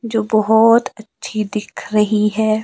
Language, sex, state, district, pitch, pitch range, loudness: Hindi, female, Himachal Pradesh, Shimla, 215 Hz, 215-225 Hz, -16 LUFS